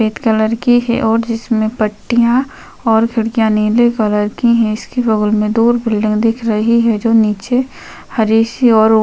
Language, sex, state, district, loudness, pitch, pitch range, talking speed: Hindi, female, Uttar Pradesh, Varanasi, -14 LUFS, 225 Hz, 215-235 Hz, 190 wpm